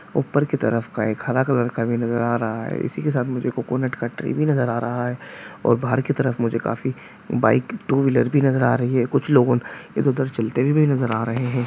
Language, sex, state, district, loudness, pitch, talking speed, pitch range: Bhojpuri, male, Bihar, Saran, -21 LUFS, 125 Hz, 260 wpm, 120-135 Hz